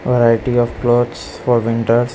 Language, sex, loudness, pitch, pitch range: English, male, -16 LUFS, 120 Hz, 115-120 Hz